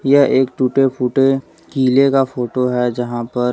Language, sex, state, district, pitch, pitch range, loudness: Hindi, male, Jharkhand, Deoghar, 130 Hz, 125-135 Hz, -16 LUFS